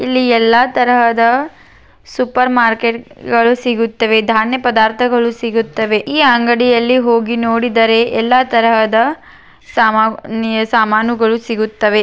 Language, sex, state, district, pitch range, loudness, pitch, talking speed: Kannada, female, Karnataka, Belgaum, 225-245 Hz, -13 LUFS, 230 Hz, 90 wpm